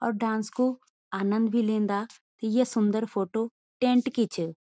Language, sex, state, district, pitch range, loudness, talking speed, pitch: Garhwali, female, Uttarakhand, Tehri Garhwal, 210-240 Hz, -27 LUFS, 150 wpm, 225 Hz